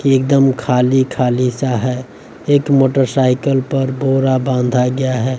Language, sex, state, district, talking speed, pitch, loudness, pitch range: Hindi, male, Bihar, West Champaran, 135 wpm, 130 Hz, -15 LUFS, 125-135 Hz